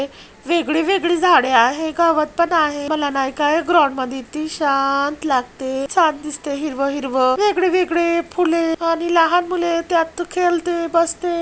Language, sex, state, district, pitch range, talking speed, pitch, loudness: Marathi, male, Maharashtra, Chandrapur, 280-340 Hz, 120 wpm, 325 Hz, -18 LUFS